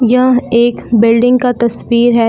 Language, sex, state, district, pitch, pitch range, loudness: Hindi, female, Jharkhand, Palamu, 240 Hz, 235-250 Hz, -11 LUFS